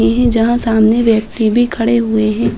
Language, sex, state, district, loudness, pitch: Hindi, female, Uttar Pradesh, Deoria, -13 LUFS, 220 Hz